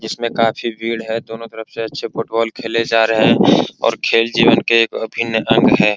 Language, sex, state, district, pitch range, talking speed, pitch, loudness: Hindi, male, Bihar, Araria, 110-115 Hz, 210 wpm, 115 Hz, -16 LUFS